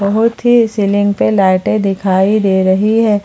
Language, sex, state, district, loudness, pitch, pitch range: Hindi, female, Jharkhand, Palamu, -12 LUFS, 205 Hz, 190-215 Hz